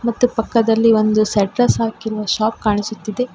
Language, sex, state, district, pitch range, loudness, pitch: Kannada, female, Karnataka, Koppal, 215-230 Hz, -17 LUFS, 220 Hz